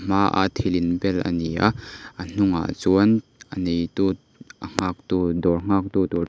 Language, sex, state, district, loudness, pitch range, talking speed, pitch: Mizo, male, Mizoram, Aizawl, -22 LUFS, 90-100 Hz, 155 wpm, 95 Hz